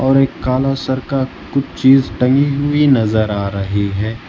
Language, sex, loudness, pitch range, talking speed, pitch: Hindi, male, -15 LUFS, 110-135 Hz, 180 wpm, 130 Hz